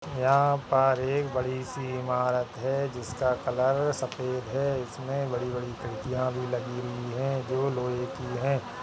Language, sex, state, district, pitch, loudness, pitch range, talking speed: Hindi, male, Uttarakhand, Tehri Garhwal, 130 Hz, -29 LUFS, 125-135 Hz, 150 wpm